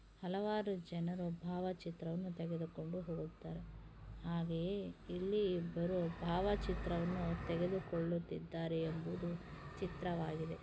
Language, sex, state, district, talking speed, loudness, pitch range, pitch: Kannada, female, Karnataka, Dharwad, 75 wpm, -41 LUFS, 165-180 Hz, 170 Hz